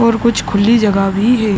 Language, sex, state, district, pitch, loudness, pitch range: Hindi, male, Uttar Pradesh, Ghazipur, 220 Hz, -13 LUFS, 200-235 Hz